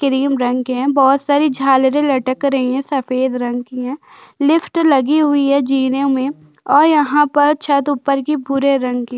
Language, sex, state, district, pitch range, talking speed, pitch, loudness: Hindi, female, Chhattisgarh, Jashpur, 260-290 Hz, 190 wpm, 275 Hz, -15 LUFS